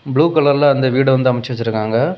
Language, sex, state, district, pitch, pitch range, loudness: Tamil, male, Tamil Nadu, Kanyakumari, 130 Hz, 120-145 Hz, -15 LUFS